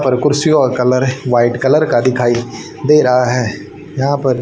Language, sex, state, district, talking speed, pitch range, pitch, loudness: Hindi, male, Haryana, Charkhi Dadri, 175 wpm, 120-135 Hz, 125 Hz, -13 LUFS